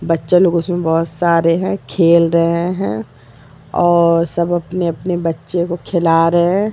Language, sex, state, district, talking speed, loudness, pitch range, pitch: Hindi, female, Bihar, Vaishali, 160 wpm, -15 LUFS, 165-175 Hz, 170 Hz